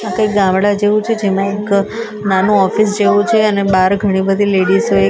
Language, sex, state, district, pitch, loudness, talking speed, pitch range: Gujarati, female, Maharashtra, Mumbai Suburban, 200 Hz, -13 LUFS, 235 wpm, 195-210 Hz